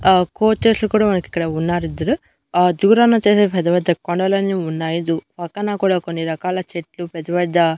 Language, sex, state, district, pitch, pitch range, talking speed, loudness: Telugu, female, Andhra Pradesh, Annamaya, 180 Hz, 170-200 Hz, 155 wpm, -18 LUFS